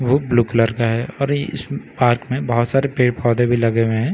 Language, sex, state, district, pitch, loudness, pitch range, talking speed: Hindi, male, Bihar, Katihar, 120 Hz, -18 LUFS, 115-135 Hz, 260 wpm